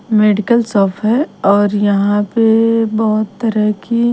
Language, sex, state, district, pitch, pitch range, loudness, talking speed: Hindi, female, Himachal Pradesh, Shimla, 215 Hz, 205-230 Hz, -14 LUFS, 130 wpm